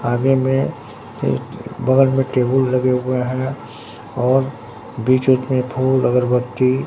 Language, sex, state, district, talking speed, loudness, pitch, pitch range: Hindi, male, Bihar, Katihar, 120 wpm, -18 LUFS, 130 Hz, 125-130 Hz